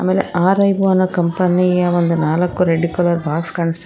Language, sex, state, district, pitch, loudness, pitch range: Kannada, female, Karnataka, Koppal, 180 Hz, -16 LUFS, 170-185 Hz